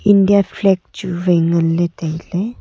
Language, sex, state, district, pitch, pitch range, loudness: Wancho, female, Arunachal Pradesh, Longding, 175 Hz, 165-195 Hz, -16 LUFS